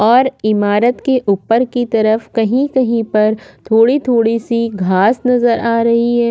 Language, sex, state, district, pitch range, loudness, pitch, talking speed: Hindi, female, Maharashtra, Aurangabad, 220-245 Hz, -14 LUFS, 230 Hz, 160 wpm